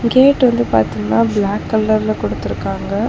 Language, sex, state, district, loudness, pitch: Tamil, female, Tamil Nadu, Chennai, -16 LUFS, 205 Hz